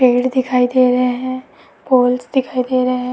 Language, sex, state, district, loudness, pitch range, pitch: Hindi, female, Uttar Pradesh, Etah, -16 LUFS, 250-255 Hz, 255 Hz